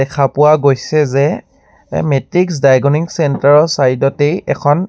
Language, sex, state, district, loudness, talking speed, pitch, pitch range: Assamese, male, Assam, Sonitpur, -13 LUFS, 145 wpm, 145 Hz, 135-155 Hz